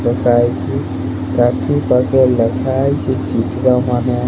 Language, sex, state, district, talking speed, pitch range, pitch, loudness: Odia, male, Odisha, Sambalpur, 125 wpm, 115-130 Hz, 125 Hz, -15 LUFS